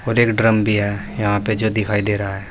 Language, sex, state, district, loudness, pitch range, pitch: Hindi, male, Uttar Pradesh, Saharanpur, -18 LUFS, 100-110 Hz, 105 Hz